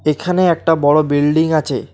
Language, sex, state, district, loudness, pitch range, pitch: Bengali, male, West Bengal, Alipurduar, -14 LUFS, 145-165 Hz, 155 Hz